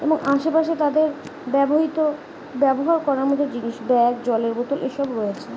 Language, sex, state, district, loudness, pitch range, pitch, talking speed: Bengali, female, West Bengal, Paschim Medinipur, -21 LUFS, 250-305 Hz, 280 Hz, 140 wpm